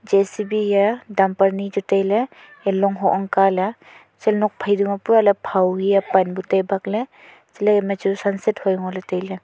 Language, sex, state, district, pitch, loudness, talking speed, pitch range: Wancho, female, Arunachal Pradesh, Longding, 200 Hz, -20 LUFS, 185 wpm, 195-210 Hz